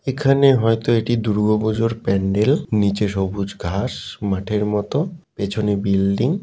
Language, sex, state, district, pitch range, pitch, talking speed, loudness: Bengali, male, West Bengal, Dakshin Dinajpur, 100-130 Hz, 105 Hz, 120 wpm, -20 LUFS